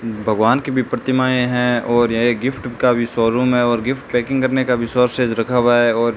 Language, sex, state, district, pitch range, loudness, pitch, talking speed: Hindi, male, Rajasthan, Bikaner, 120-125 Hz, -17 LUFS, 120 Hz, 235 wpm